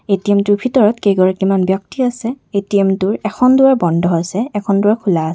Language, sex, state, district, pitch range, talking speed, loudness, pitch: Assamese, female, Assam, Kamrup Metropolitan, 190-225 Hz, 190 wpm, -14 LUFS, 200 Hz